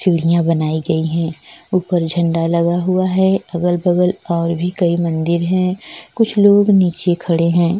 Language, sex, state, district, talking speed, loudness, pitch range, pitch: Hindi, female, Uttarakhand, Tehri Garhwal, 155 wpm, -16 LUFS, 170-185 Hz, 175 Hz